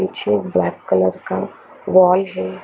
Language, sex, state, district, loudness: Hindi, female, Chandigarh, Chandigarh, -18 LUFS